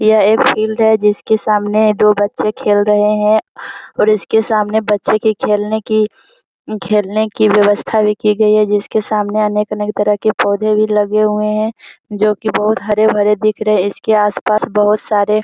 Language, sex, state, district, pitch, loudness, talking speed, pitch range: Hindi, female, Bihar, Jamui, 215 Hz, -14 LUFS, 185 wpm, 210-215 Hz